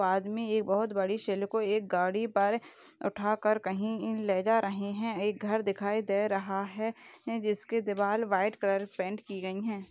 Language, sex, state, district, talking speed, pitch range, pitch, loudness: Hindi, female, Goa, North and South Goa, 180 wpm, 195-220 Hz, 205 Hz, -31 LUFS